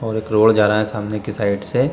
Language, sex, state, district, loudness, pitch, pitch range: Hindi, male, Bihar, Saran, -18 LUFS, 105 Hz, 105-110 Hz